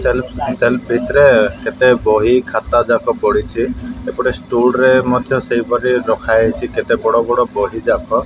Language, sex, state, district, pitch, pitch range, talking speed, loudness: Odia, male, Odisha, Malkangiri, 120 Hz, 115-125 Hz, 150 wpm, -14 LUFS